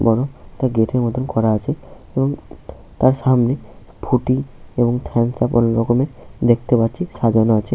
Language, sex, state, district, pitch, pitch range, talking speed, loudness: Bengali, male, West Bengal, Paschim Medinipur, 120 Hz, 115-130 Hz, 155 wpm, -18 LUFS